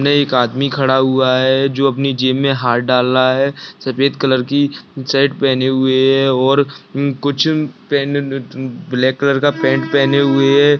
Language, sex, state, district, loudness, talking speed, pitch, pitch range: Hindi, male, Bihar, Saharsa, -14 LUFS, 165 wpm, 135 Hz, 130-140 Hz